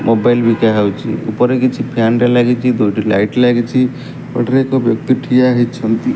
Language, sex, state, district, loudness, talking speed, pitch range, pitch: Odia, male, Odisha, Malkangiri, -14 LUFS, 165 wpm, 115-125 Hz, 120 Hz